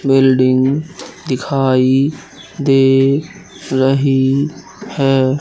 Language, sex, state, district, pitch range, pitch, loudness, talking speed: Hindi, male, Madhya Pradesh, Katni, 130-145 Hz, 135 Hz, -14 LUFS, 55 wpm